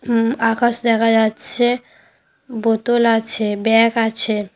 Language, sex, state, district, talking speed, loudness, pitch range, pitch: Bengali, female, West Bengal, Paschim Medinipur, 120 wpm, -17 LUFS, 225-240 Hz, 230 Hz